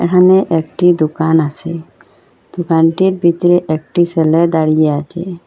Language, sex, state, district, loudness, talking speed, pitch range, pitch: Bengali, female, Assam, Hailakandi, -13 LUFS, 110 wpm, 160-175 Hz, 165 Hz